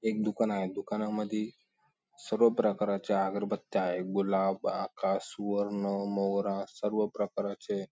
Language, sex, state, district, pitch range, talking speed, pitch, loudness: Marathi, male, Maharashtra, Sindhudurg, 100-105 Hz, 115 wpm, 100 Hz, -32 LUFS